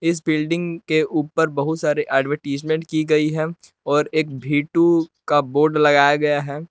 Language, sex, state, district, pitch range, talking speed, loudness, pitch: Hindi, male, Jharkhand, Palamu, 145-160 Hz, 170 wpm, -19 LUFS, 155 Hz